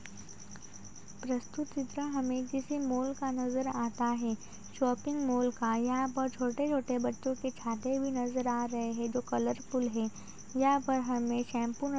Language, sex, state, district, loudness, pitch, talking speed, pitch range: Hindi, female, Uttar Pradesh, Budaun, -33 LUFS, 255 Hz, 160 wpm, 240-270 Hz